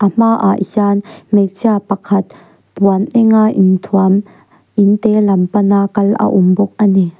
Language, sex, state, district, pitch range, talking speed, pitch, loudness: Mizo, female, Mizoram, Aizawl, 195-210 Hz, 140 wpm, 200 Hz, -13 LUFS